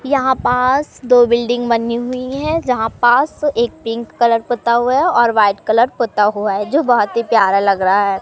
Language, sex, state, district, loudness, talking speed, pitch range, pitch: Hindi, male, Madhya Pradesh, Katni, -15 LUFS, 205 wpm, 220-255 Hz, 235 Hz